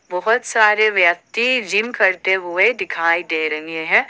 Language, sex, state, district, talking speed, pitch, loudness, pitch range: Hindi, female, Jharkhand, Ranchi, 145 wpm, 190 Hz, -17 LUFS, 170-225 Hz